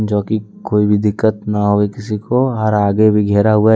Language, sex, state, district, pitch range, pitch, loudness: Hindi, male, Jharkhand, Deoghar, 105-110 Hz, 105 Hz, -15 LUFS